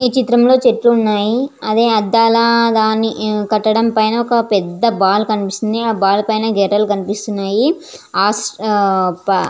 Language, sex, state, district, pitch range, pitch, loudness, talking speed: Telugu, female, Andhra Pradesh, Visakhapatnam, 205-230 Hz, 220 Hz, -14 LUFS, 135 wpm